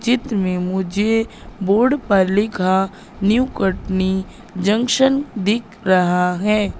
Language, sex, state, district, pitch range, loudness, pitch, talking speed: Hindi, female, Madhya Pradesh, Katni, 190-225 Hz, -18 LUFS, 205 Hz, 105 wpm